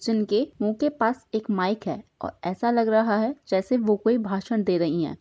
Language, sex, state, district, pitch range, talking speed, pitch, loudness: Hindi, female, Bihar, Jahanabad, 195-230 Hz, 220 wpm, 215 Hz, -25 LUFS